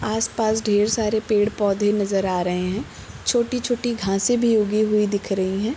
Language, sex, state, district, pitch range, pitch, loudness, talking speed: Hindi, female, Bihar, Gopalganj, 200-225 Hz, 210 Hz, -21 LUFS, 200 wpm